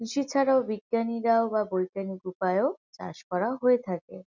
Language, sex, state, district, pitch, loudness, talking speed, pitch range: Bengali, female, West Bengal, Kolkata, 220 Hz, -27 LUFS, 155 wpm, 185-250 Hz